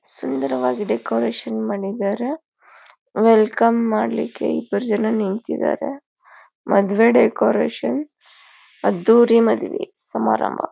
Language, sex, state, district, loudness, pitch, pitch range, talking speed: Kannada, female, Karnataka, Bijapur, -19 LUFS, 225 Hz, 200-280 Hz, 75 wpm